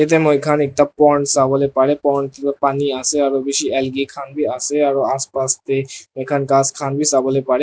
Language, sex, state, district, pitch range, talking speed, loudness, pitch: Nagamese, male, Nagaland, Dimapur, 135-145 Hz, 215 wpm, -17 LUFS, 140 Hz